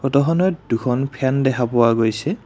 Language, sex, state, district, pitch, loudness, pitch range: Assamese, male, Assam, Kamrup Metropolitan, 130 Hz, -19 LUFS, 120-140 Hz